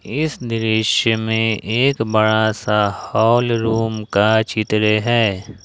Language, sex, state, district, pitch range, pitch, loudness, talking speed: Hindi, male, Jharkhand, Ranchi, 110-115 Hz, 110 Hz, -17 LUFS, 115 wpm